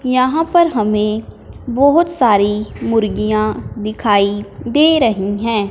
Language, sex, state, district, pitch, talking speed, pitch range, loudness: Hindi, female, Punjab, Fazilka, 220 Hz, 105 wpm, 210-265 Hz, -15 LUFS